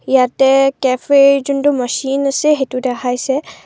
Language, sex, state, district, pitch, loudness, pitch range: Assamese, female, Assam, Kamrup Metropolitan, 270 Hz, -14 LUFS, 255-275 Hz